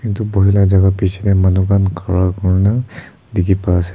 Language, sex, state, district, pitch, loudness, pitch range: Nagamese, male, Nagaland, Kohima, 95 Hz, -15 LUFS, 95-100 Hz